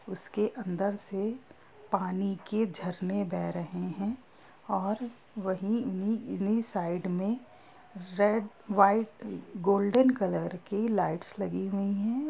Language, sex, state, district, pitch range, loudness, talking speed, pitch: Hindi, female, Bihar, Gopalganj, 190-220 Hz, -31 LUFS, 110 wpm, 200 Hz